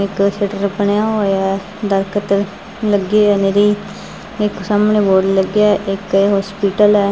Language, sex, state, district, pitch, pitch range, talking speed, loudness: Punjabi, female, Punjab, Fazilka, 200 Hz, 195-210 Hz, 135 wpm, -15 LUFS